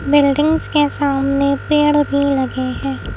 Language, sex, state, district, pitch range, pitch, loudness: Hindi, female, Madhya Pradesh, Bhopal, 270-295 Hz, 280 Hz, -16 LUFS